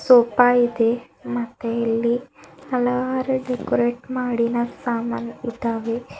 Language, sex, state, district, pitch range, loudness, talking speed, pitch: Kannada, female, Karnataka, Bidar, 235-250 Hz, -22 LUFS, 85 wpm, 240 Hz